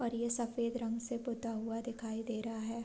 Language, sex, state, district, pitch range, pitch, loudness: Hindi, female, Bihar, Sitamarhi, 225-235 Hz, 230 Hz, -39 LUFS